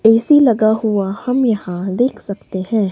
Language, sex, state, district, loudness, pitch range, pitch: Hindi, male, Himachal Pradesh, Shimla, -16 LUFS, 195-240 Hz, 220 Hz